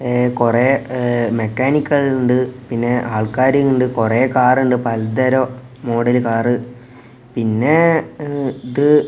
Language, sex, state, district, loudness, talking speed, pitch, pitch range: Malayalam, male, Kerala, Kozhikode, -16 LUFS, 105 wpm, 125 Hz, 120-130 Hz